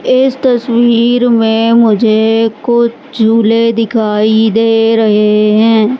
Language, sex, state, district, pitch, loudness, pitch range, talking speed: Hindi, male, Madhya Pradesh, Katni, 225 Hz, -10 LUFS, 220-235 Hz, 90 wpm